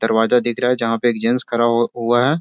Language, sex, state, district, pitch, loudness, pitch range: Hindi, male, Bihar, Sitamarhi, 120 Hz, -17 LUFS, 115-120 Hz